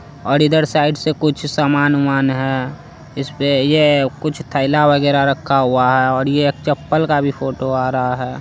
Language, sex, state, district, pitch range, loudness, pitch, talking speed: Hindi, female, Bihar, Araria, 135-150 Hz, -16 LUFS, 140 Hz, 180 wpm